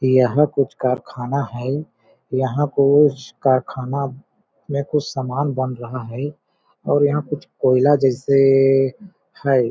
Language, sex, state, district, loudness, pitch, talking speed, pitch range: Hindi, male, Chhattisgarh, Balrampur, -19 LUFS, 135 Hz, 115 wpm, 130-145 Hz